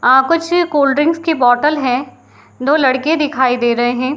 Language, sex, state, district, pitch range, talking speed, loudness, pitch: Hindi, female, Bihar, Saharsa, 255-305 Hz, 170 wpm, -14 LUFS, 275 Hz